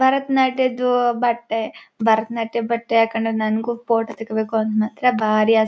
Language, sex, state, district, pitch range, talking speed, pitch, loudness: Kannada, female, Karnataka, Chamarajanagar, 220-240 Hz, 135 wpm, 230 Hz, -20 LUFS